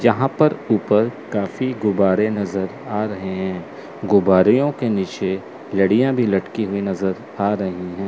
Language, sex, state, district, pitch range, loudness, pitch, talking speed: Hindi, male, Chandigarh, Chandigarh, 95-115 Hz, -20 LUFS, 100 Hz, 150 wpm